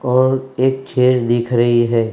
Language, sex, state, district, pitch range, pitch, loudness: Hindi, male, Maharashtra, Mumbai Suburban, 120-130 Hz, 125 Hz, -16 LUFS